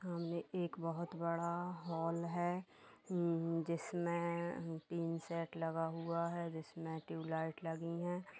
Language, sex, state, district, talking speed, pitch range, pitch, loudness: Hindi, female, Chhattisgarh, Kabirdham, 130 wpm, 165-170 Hz, 170 Hz, -41 LUFS